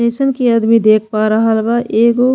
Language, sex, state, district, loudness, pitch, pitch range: Bhojpuri, female, Uttar Pradesh, Ghazipur, -13 LUFS, 230 Hz, 220-240 Hz